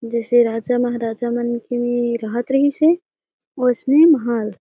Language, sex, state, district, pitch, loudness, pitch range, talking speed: Chhattisgarhi, female, Chhattisgarh, Jashpur, 240 Hz, -18 LUFS, 235-255 Hz, 130 wpm